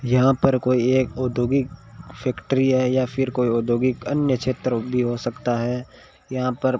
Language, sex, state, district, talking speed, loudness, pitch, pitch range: Hindi, male, Rajasthan, Bikaner, 175 wpm, -22 LUFS, 125 Hz, 120-130 Hz